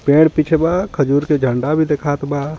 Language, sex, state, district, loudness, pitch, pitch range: Bhojpuri, male, Jharkhand, Palamu, -16 LUFS, 150 Hz, 145-160 Hz